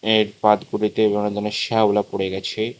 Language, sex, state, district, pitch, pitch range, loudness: Bengali, male, Tripura, West Tripura, 105 Hz, 105-110 Hz, -20 LUFS